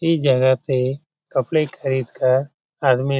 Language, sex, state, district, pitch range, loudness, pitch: Hindi, male, Bihar, Jamui, 130-145 Hz, -20 LUFS, 135 Hz